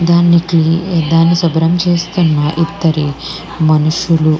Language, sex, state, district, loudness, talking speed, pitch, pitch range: Telugu, female, Andhra Pradesh, Srikakulam, -12 LUFS, 95 wpm, 165 Hz, 155-170 Hz